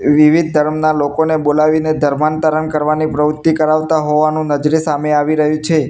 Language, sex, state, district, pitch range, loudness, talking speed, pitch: Gujarati, male, Gujarat, Gandhinagar, 150-155 Hz, -14 LUFS, 140 wpm, 155 Hz